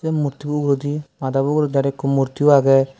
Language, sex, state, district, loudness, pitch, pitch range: Chakma, male, Tripura, Dhalai, -19 LUFS, 140 Hz, 135-150 Hz